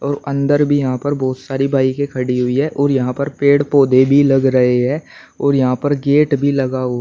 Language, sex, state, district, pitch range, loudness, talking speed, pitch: Hindi, male, Uttar Pradesh, Shamli, 130-140 Hz, -15 LUFS, 230 wpm, 140 Hz